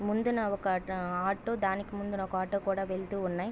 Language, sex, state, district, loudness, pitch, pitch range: Telugu, female, Andhra Pradesh, Visakhapatnam, -32 LUFS, 195 Hz, 185-205 Hz